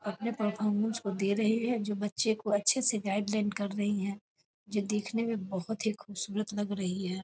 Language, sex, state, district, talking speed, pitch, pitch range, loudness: Maithili, female, Bihar, Muzaffarpur, 205 wpm, 205 Hz, 200-215 Hz, -32 LUFS